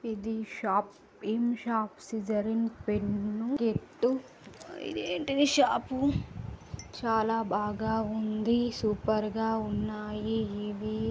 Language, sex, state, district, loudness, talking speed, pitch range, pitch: Telugu, female, Andhra Pradesh, Srikakulam, -31 LUFS, 105 wpm, 210-230 Hz, 220 Hz